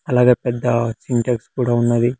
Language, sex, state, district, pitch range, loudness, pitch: Telugu, male, Andhra Pradesh, Sri Satya Sai, 120-125 Hz, -18 LUFS, 120 Hz